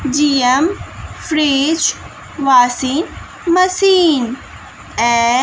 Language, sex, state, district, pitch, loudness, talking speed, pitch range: Hindi, female, Bihar, West Champaran, 285 Hz, -14 LUFS, 55 wpm, 255-325 Hz